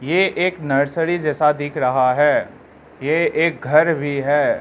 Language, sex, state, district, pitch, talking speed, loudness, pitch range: Hindi, male, Arunachal Pradesh, Lower Dibang Valley, 150 Hz, 155 wpm, -18 LUFS, 145-165 Hz